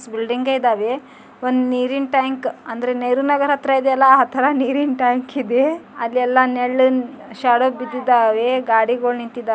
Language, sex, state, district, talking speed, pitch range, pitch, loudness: Kannada, male, Karnataka, Dharwad, 125 wpm, 245-265 Hz, 255 Hz, -18 LUFS